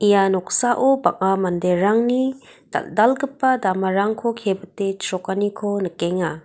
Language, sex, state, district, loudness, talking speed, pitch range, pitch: Garo, female, Meghalaya, West Garo Hills, -20 LUFS, 85 wpm, 190-235 Hz, 200 Hz